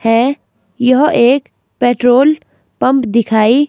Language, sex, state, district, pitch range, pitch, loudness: Hindi, female, Himachal Pradesh, Shimla, 235-270 Hz, 245 Hz, -12 LUFS